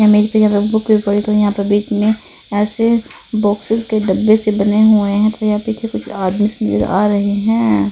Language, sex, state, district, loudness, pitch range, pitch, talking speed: Hindi, female, Punjab, Fazilka, -15 LUFS, 205-220 Hz, 210 Hz, 160 wpm